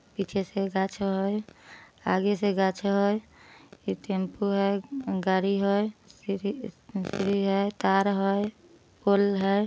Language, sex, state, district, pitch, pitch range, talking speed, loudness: Magahi, female, Bihar, Samastipur, 200 Hz, 195-205 Hz, 125 wpm, -27 LUFS